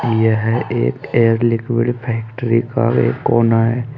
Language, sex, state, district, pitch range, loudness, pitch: Hindi, male, Uttar Pradesh, Saharanpur, 115-120 Hz, -16 LUFS, 115 Hz